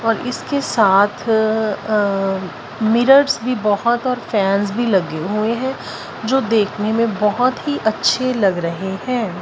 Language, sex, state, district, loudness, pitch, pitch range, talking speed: Hindi, female, Punjab, Fazilka, -17 LUFS, 220 Hz, 200-250 Hz, 140 wpm